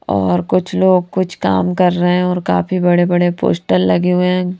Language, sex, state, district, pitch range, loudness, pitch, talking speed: Hindi, female, Haryana, Rohtak, 170-180 Hz, -15 LUFS, 180 Hz, 210 wpm